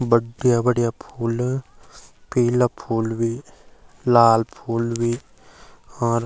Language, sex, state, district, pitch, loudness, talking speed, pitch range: Garhwali, male, Uttarakhand, Uttarkashi, 115 Hz, -21 LUFS, 105 wpm, 115-125 Hz